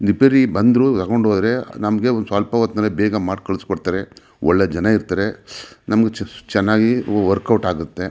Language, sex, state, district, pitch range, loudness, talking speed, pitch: Kannada, male, Karnataka, Mysore, 95-115 Hz, -18 LUFS, 135 wpm, 105 Hz